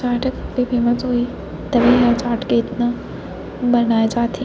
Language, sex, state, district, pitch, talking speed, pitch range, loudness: Chhattisgarhi, female, Chhattisgarh, Raigarh, 240 Hz, 150 wpm, 235-245 Hz, -18 LUFS